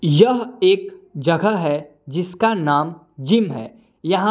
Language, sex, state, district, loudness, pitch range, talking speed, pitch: Hindi, male, Jharkhand, Palamu, -19 LUFS, 150-230 Hz, 125 wpm, 190 Hz